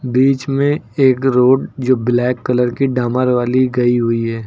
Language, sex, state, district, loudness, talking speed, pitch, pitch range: Hindi, male, Uttar Pradesh, Lucknow, -15 LUFS, 175 wpm, 125 Hz, 120-130 Hz